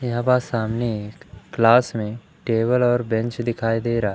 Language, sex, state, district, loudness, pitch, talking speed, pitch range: Hindi, male, Madhya Pradesh, Umaria, -21 LUFS, 115 Hz, 175 wpm, 115-120 Hz